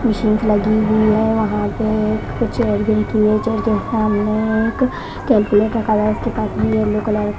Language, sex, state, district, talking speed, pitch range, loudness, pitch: Hindi, female, Maharashtra, Washim, 160 wpm, 215-220 Hz, -17 LUFS, 215 Hz